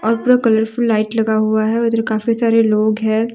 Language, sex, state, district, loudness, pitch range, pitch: Hindi, female, Jharkhand, Deoghar, -15 LUFS, 220-230 Hz, 225 Hz